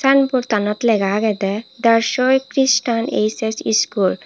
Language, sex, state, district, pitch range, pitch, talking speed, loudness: Chakma, female, Tripura, Unakoti, 210-255 Hz, 230 Hz, 125 wpm, -17 LUFS